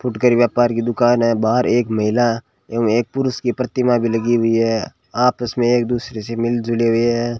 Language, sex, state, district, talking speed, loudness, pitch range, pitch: Hindi, male, Rajasthan, Bikaner, 210 wpm, -18 LUFS, 115-120 Hz, 120 Hz